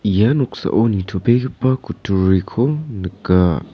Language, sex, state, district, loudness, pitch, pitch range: Garo, male, Meghalaya, South Garo Hills, -18 LUFS, 105 Hz, 95-125 Hz